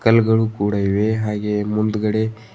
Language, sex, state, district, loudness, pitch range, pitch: Kannada, male, Karnataka, Bidar, -19 LUFS, 105-110 Hz, 110 Hz